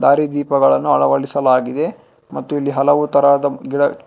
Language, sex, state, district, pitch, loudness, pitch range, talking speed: Kannada, male, Karnataka, Bangalore, 140 Hz, -16 LUFS, 135-145 Hz, 120 wpm